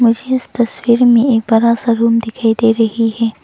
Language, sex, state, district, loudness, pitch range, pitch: Hindi, female, Arunachal Pradesh, Longding, -13 LUFS, 225-235 Hz, 230 Hz